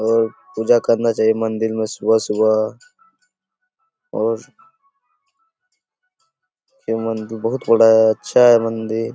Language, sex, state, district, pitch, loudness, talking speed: Hindi, male, Chhattisgarh, Korba, 115 Hz, -17 LUFS, 110 wpm